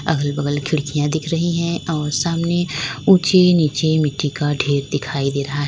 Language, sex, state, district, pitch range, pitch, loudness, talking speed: Hindi, female, Uttar Pradesh, Lalitpur, 145-170 Hz, 150 Hz, -18 LUFS, 180 wpm